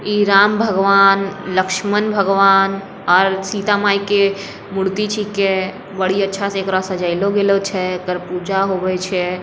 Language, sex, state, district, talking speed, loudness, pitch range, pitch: Angika, female, Bihar, Begusarai, 140 wpm, -16 LUFS, 190-200 Hz, 195 Hz